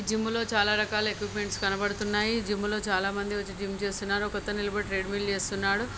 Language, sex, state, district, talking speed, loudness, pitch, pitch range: Telugu, male, Andhra Pradesh, Krishna, 160 wpm, -29 LUFS, 205 Hz, 200-210 Hz